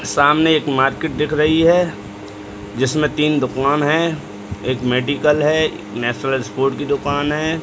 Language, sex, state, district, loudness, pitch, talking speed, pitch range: Hindi, male, Uttar Pradesh, Deoria, -17 LUFS, 145 Hz, 140 wpm, 125-150 Hz